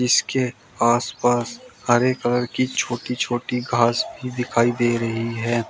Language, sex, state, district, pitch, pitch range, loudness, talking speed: Hindi, male, Uttar Pradesh, Shamli, 120 Hz, 120-125 Hz, -21 LUFS, 135 wpm